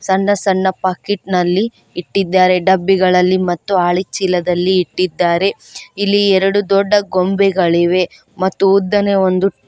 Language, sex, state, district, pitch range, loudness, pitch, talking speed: Kannada, female, Karnataka, Koppal, 180-195 Hz, -14 LUFS, 190 Hz, 120 wpm